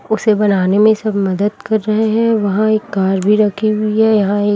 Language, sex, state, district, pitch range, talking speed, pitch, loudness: Hindi, female, Chhattisgarh, Raipur, 205-220 Hz, 225 wpm, 215 Hz, -14 LUFS